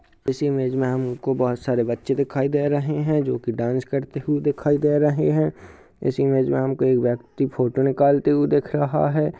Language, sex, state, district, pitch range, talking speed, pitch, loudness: Hindi, male, Uttar Pradesh, Jalaun, 125-145 Hz, 230 wpm, 135 Hz, -22 LUFS